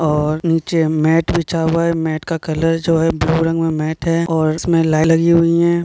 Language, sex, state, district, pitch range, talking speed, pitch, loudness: Hindi, male, Jharkhand, Sahebganj, 160-165 Hz, 215 wpm, 165 Hz, -16 LUFS